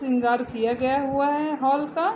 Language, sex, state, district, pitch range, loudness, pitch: Hindi, female, Uttar Pradesh, Deoria, 245-290 Hz, -23 LUFS, 275 Hz